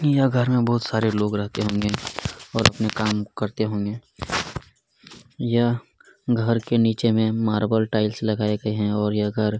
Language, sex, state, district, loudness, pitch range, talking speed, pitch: Hindi, male, Chhattisgarh, Kabirdham, -23 LUFS, 105-115 Hz, 160 wpm, 110 Hz